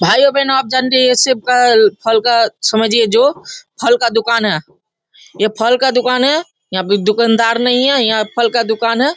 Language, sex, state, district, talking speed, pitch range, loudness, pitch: Hindi, male, Bihar, Darbhanga, 210 wpm, 220-255 Hz, -13 LUFS, 235 Hz